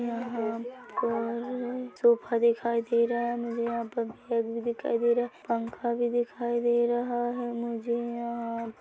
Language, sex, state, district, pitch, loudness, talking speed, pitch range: Hindi, female, Chhattisgarh, Korba, 235 Hz, -29 LUFS, 165 wpm, 235-240 Hz